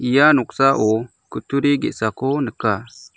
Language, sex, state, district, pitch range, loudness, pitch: Garo, male, Meghalaya, South Garo Hills, 110-140 Hz, -19 LUFS, 125 Hz